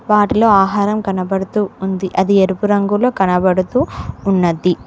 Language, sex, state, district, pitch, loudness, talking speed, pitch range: Telugu, female, Telangana, Mahabubabad, 195 Hz, -15 LUFS, 110 wpm, 190-210 Hz